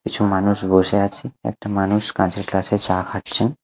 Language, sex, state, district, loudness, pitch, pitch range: Bengali, male, Odisha, Khordha, -18 LUFS, 100 Hz, 95-105 Hz